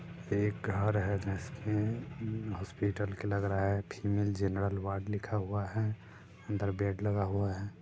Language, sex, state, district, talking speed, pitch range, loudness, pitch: Hindi, male, Bihar, Sitamarhi, 155 wpm, 100-105 Hz, -34 LUFS, 100 Hz